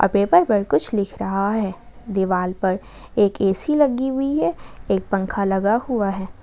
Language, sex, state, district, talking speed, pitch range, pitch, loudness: Hindi, female, Jharkhand, Ranchi, 170 wpm, 190-215 Hz, 195 Hz, -21 LUFS